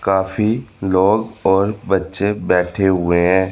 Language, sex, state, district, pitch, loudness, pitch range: Hindi, male, Chandigarh, Chandigarh, 95 Hz, -17 LUFS, 95-105 Hz